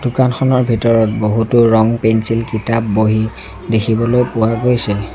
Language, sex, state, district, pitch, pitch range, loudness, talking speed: Assamese, male, Assam, Sonitpur, 115 Hz, 110-120 Hz, -14 LUFS, 105 wpm